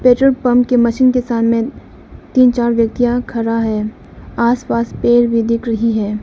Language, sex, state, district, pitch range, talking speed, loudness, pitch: Hindi, female, Arunachal Pradesh, Lower Dibang Valley, 230-245 Hz, 175 wpm, -15 LUFS, 235 Hz